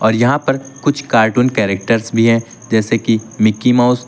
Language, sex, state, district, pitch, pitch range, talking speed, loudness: Hindi, male, Uttar Pradesh, Lucknow, 115 Hz, 110-125 Hz, 175 wpm, -15 LUFS